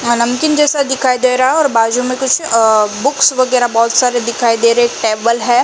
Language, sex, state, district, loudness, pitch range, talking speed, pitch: Hindi, female, Uttar Pradesh, Jalaun, -12 LUFS, 230-265 Hz, 245 wpm, 245 Hz